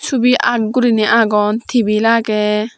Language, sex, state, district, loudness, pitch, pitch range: Chakma, female, Tripura, Dhalai, -14 LUFS, 225 Hz, 215-240 Hz